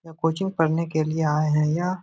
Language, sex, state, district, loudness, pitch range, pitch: Hindi, male, Bihar, Jahanabad, -23 LUFS, 155-170 Hz, 160 Hz